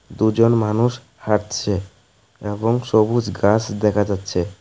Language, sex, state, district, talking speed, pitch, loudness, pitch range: Bengali, male, Tripura, West Tripura, 105 wpm, 105 Hz, -19 LUFS, 100-115 Hz